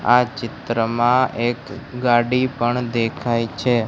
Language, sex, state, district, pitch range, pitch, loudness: Gujarati, male, Gujarat, Gandhinagar, 115-125 Hz, 120 Hz, -20 LUFS